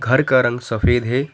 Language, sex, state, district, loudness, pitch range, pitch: Hindi, male, West Bengal, Alipurduar, -17 LUFS, 120-130 Hz, 125 Hz